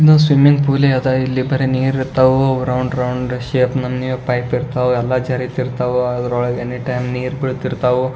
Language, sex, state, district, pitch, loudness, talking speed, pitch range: Kannada, male, Karnataka, Bijapur, 130 Hz, -17 LUFS, 145 wpm, 125-130 Hz